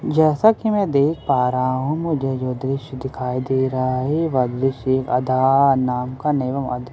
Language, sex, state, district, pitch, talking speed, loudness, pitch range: Hindi, male, Bihar, Katihar, 130 Hz, 145 wpm, -20 LUFS, 130-140 Hz